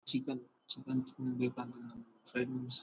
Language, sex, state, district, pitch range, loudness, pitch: Kannada, male, Karnataka, Bellary, 125-130 Hz, -39 LUFS, 125 Hz